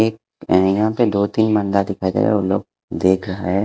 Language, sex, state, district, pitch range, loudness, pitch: Hindi, male, Haryana, Jhajjar, 95-110 Hz, -18 LUFS, 100 Hz